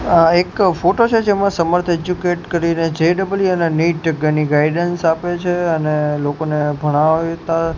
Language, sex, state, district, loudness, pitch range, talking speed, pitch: Gujarati, male, Gujarat, Gandhinagar, -16 LUFS, 160-175 Hz, 155 wpm, 165 Hz